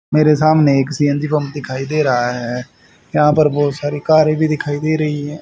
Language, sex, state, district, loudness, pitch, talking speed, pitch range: Hindi, male, Haryana, Rohtak, -16 LUFS, 150 Hz, 210 wpm, 140-155 Hz